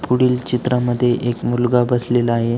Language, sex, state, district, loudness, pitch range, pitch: Marathi, male, Maharashtra, Aurangabad, -18 LUFS, 120-125 Hz, 120 Hz